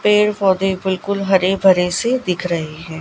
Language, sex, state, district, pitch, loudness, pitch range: Hindi, female, Gujarat, Gandhinagar, 190 Hz, -17 LUFS, 180-200 Hz